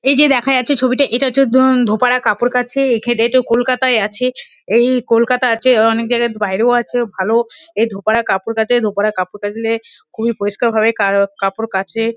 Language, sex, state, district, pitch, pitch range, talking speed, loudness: Bengali, female, West Bengal, Kolkata, 235 Hz, 220-250 Hz, 160 wpm, -15 LUFS